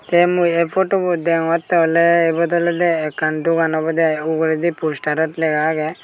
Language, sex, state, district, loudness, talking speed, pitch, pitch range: Chakma, male, Tripura, Dhalai, -17 LUFS, 160 wpm, 165 Hz, 160-170 Hz